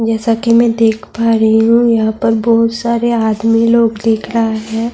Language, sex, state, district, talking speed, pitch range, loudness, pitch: Urdu, female, Bihar, Saharsa, 205 wpm, 225-230 Hz, -12 LUFS, 230 Hz